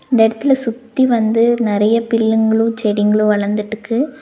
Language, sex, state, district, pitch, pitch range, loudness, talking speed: Tamil, female, Tamil Nadu, Nilgiris, 225 Hz, 215-235 Hz, -15 LUFS, 115 wpm